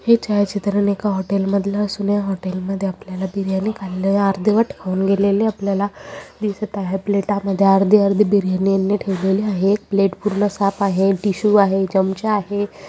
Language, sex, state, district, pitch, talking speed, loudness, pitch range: Marathi, female, Maharashtra, Chandrapur, 200 Hz, 160 wpm, -19 LUFS, 195-205 Hz